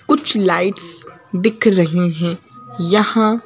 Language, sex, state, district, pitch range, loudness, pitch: Hindi, female, Madhya Pradesh, Bhopal, 175-220 Hz, -16 LUFS, 185 Hz